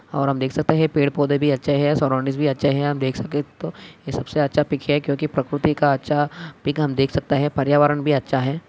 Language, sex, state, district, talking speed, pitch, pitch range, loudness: Hindi, male, Maharashtra, Aurangabad, 255 wpm, 145 Hz, 140-150 Hz, -21 LUFS